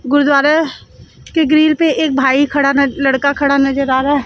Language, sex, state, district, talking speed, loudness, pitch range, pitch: Hindi, female, Chandigarh, Chandigarh, 185 wpm, -13 LUFS, 275-305 Hz, 280 Hz